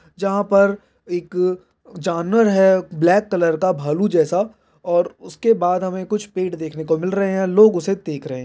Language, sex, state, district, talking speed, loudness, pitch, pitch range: Hindi, male, Bihar, Jahanabad, 185 wpm, -19 LUFS, 185 Hz, 175-200 Hz